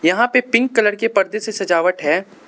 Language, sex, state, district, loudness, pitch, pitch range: Hindi, male, Arunachal Pradesh, Lower Dibang Valley, -17 LUFS, 210 Hz, 185-230 Hz